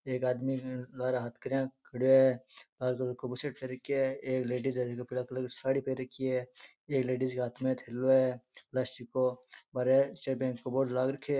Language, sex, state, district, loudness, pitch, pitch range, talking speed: Rajasthani, male, Rajasthan, Churu, -32 LUFS, 130 Hz, 125-130 Hz, 215 wpm